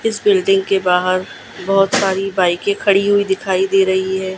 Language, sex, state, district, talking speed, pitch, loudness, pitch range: Hindi, female, Gujarat, Gandhinagar, 180 wpm, 195 Hz, -15 LUFS, 190-195 Hz